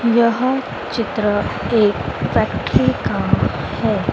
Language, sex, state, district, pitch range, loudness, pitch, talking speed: Hindi, female, Madhya Pradesh, Dhar, 210-240 Hz, -18 LUFS, 230 Hz, 85 wpm